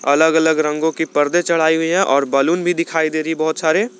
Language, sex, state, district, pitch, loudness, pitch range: Hindi, male, Jharkhand, Garhwa, 160 Hz, -16 LUFS, 155-170 Hz